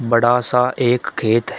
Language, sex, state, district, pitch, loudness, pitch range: Hindi, male, Uttar Pradesh, Shamli, 120 Hz, -17 LUFS, 115-125 Hz